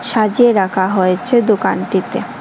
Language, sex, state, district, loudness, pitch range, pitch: Bengali, male, Tripura, West Tripura, -14 LUFS, 190-235 Hz, 205 Hz